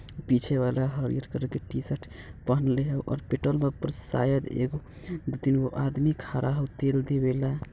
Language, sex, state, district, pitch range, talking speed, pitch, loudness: Bajjika, male, Bihar, Vaishali, 130-140 Hz, 170 wpm, 135 Hz, -28 LUFS